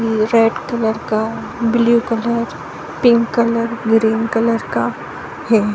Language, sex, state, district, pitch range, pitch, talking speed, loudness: Hindi, female, Bihar, Saran, 225-235 Hz, 230 Hz, 115 wpm, -16 LUFS